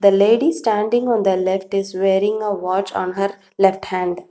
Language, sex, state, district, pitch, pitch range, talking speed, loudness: English, female, Telangana, Hyderabad, 195 Hz, 190-210 Hz, 210 wpm, -18 LUFS